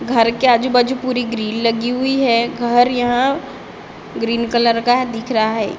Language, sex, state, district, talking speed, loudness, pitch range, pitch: Hindi, female, Maharashtra, Gondia, 165 wpm, -16 LUFS, 230-255 Hz, 240 Hz